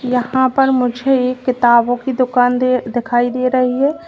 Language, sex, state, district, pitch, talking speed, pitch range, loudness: Hindi, female, Uttar Pradesh, Lalitpur, 250 Hz, 175 wpm, 245-260 Hz, -15 LUFS